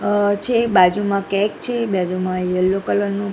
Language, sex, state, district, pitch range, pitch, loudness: Gujarati, female, Gujarat, Gandhinagar, 185-205 Hz, 200 Hz, -18 LUFS